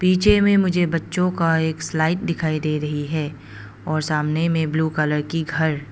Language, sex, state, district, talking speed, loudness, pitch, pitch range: Hindi, female, Arunachal Pradesh, Papum Pare, 180 wpm, -21 LUFS, 160 Hz, 150-170 Hz